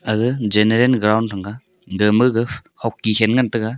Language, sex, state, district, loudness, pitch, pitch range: Wancho, male, Arunachal Pradesh, Longding, -17 LUFS, 110 Hz, 105-125 Hz